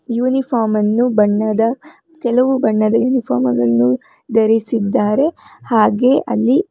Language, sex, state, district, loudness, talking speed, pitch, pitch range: Kannada, female, Karnataka, Bangalore, -15 LUFS, 90 wpm, 230 Hz, 215-255 Hz